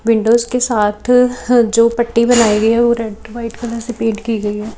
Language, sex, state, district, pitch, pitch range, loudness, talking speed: Hindi, female, Chhattisgarh, Raipur, 230 Hz, 225-240 Hz, -14 LUFS, 225 wpm